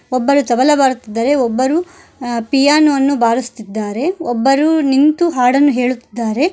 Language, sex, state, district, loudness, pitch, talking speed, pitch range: Kannada, female, Karnataka, Koppal, -14 LUFS, 270 Hz, 100 wpm, 240-290 Hz